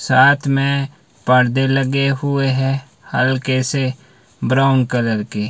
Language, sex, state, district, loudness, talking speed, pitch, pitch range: Hindi, male, Himachal Pradesh, Shimla, -17 LUFS, 120 wpm, 130 Hz, 125-135 Hz